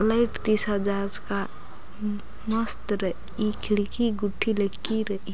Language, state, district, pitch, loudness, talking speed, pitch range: Kurukh, Chhattisgarh, Jashpur, 210 Hz, -22 LUFS, 90 wpm, 200-220 Hz